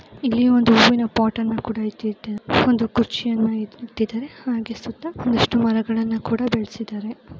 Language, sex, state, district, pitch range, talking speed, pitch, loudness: Kannada, female, Karnataka, Gulbarga, 225-240 Hz, 130 wpm, 225 Hz, -20 LUFS